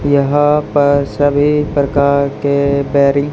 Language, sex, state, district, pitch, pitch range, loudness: Hindi, male, Haryana, Charkhi Dadri, 140 Hz, 140-145 Hz, -13 LUFS